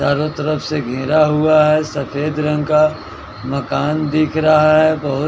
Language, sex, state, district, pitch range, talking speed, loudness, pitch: Hindi, male, Bihar, West Champaran, 145-155 Hz, 160 wpm, -16 LUFS, 150 Hz